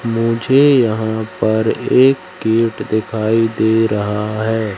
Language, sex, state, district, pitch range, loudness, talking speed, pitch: Hindi, male, Madhya Pradesh, Katni, 110-115 Hz, -15 LUFS, 115 wpm, 110 Hz